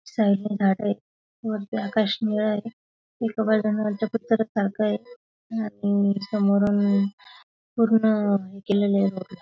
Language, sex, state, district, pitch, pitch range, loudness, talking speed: Marathi, female, Maharashtra, Aurangabad, 210 Hz, 200-220 Hz, -24 LUFS, 115 wpm